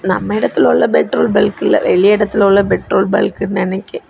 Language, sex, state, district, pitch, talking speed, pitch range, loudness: Tamil, female, Tamil Nadu, Kanyakumari, 200 Hz, 175 wpm, 195-210 Hz, -13 LUFS